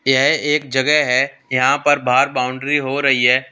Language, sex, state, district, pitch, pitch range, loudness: Hindi, male, Uttar Pradesh, Lalitpur, 135 Hz, 130-145 Hz, -16 LUFS